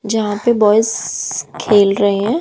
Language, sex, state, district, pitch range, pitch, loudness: Hindi, female, Haryana, Jhajjar, 205-225 Hz, 210 Hz, -15 LUFS